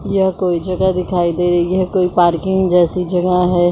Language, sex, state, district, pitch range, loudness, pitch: Hindi, female, Chhattisgarh, Bilaspur, 175-185 Hz, -15 LUFS, 180 Hz